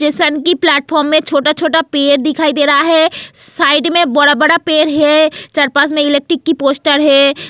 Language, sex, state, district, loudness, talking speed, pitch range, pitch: Hindi, female, Goa, North and South Goa, -11 LUFS, 170 wpm, 290-320 Hz, 300 Hz